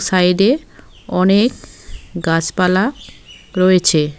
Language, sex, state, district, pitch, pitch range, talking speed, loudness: Bengali, female, West Bengal, Cooch Behar, 185 Hz, 175-200 Hz, 70 wpm, -15 LUFS